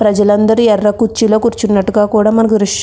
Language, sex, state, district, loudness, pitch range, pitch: Telugu, female, Andhra Pradesh, Krishna, -11 LUFS, 205-225 Hz, 215 Hz